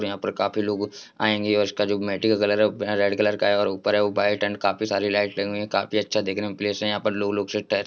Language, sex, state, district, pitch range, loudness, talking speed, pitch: Hindi, male, Bihar, Jahanabad, 100-105 Hz, -23 LUFS, 315 wpm, 105 Hz